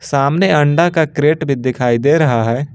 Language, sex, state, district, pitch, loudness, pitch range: Hindi, male, Jharkhand, Ranchi, 145 Hz, -14 LUFS, 130-160 Hz